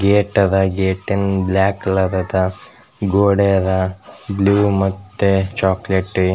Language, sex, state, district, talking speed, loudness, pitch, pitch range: Kannada, male, Karnataka, Gulbarga, 115 wpm, -17 LUFS, 95 Hz, 95-100 Hz